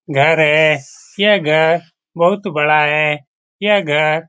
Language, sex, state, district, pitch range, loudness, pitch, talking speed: Hindi, male, Bihar, Jamui, 150-175 Hz, -14 LUFS, 155 Hz, 140 wpm